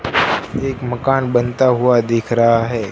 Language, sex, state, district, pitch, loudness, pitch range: Hindi, male, Gujarat, Gandhinagar, 120 Hz, -16 LUFS, 115-130 Hz